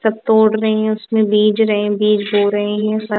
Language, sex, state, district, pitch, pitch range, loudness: Hindi, female, Punjab, Kapurthala, 215 Hz, 210-220 Hz, -15 LUFS